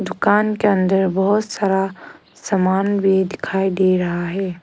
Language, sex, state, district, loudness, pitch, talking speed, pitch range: Hindi, female, Arunachal Pradesh, Lower Dibang Valley, -18 LUFS, 190 Hz, 140 wpm, 185-200 Hz